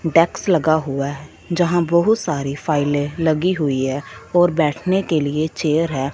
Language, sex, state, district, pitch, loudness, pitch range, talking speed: Hindi, female, Punjab, Fazilka, 155 Hz, -19 LUFS, 145-175 Hz, 165 wpm